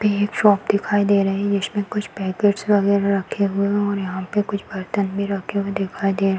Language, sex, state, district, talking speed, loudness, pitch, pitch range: Hindi, female, Uttar Pradesh, Varanasi, 225 wpm, -21 LUFS, 200 Hz, 195-205 Hz